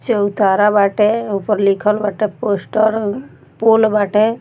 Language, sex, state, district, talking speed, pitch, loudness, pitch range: Bhojpuri, female, Bihar, Muzaffarpur, 125 wpm, 210 Hz, -15 LUFS, 200-215 Hz